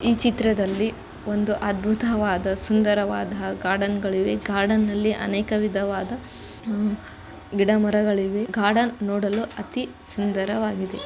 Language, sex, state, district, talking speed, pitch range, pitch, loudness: Kannada, female, Karnataka, Bijapur, 90 wpm, 200-215 Hz, 205 Hz, -23 LUFS